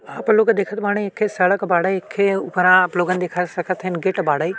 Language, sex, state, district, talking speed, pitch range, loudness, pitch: Bhojpuri, male, Uttar Pradesh, Deoria, 210 wpm, 180-200 Hz, -19 LUFS, 190 Hz